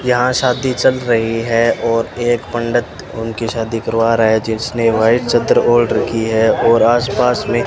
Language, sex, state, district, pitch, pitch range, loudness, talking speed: Hindi, male, Rajasthan, Bikaner, 115 Hz, 115-120 Hz, -15 LUFS, 190 wpm